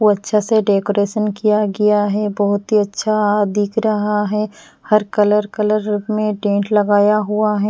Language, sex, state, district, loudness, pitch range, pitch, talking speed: Hindi, female, Punjab, Pathankot, -17 LUFS, 205-215 Hz, 210 Hz, 165 wpm